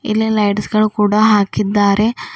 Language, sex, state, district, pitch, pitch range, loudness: Kannada, female, Karnataka, Bidar, 210 Hz, 205-215 Hz, -14 LUFS